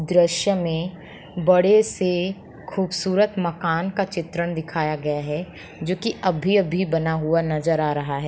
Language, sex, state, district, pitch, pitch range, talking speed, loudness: Hindi, female, Uttar Pradesh, Muzaffarnagar, 175 Hz, 160-185 Hz, 145 wpm, -22 LUFS